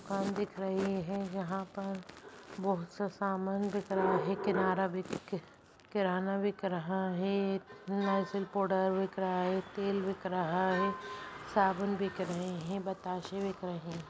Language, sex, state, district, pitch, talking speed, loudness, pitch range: Hindi, female, Bihar, Vaishali, 195 Hz, 145 wpm, -35 LUFS, 185-195 Hz